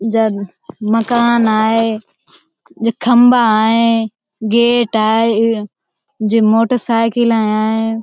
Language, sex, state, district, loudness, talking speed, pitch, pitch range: Hindi, female, Uttar Pradesh, Budaun, -13 LUFS, 75 wpm, 225 Hz, 220-235 Hz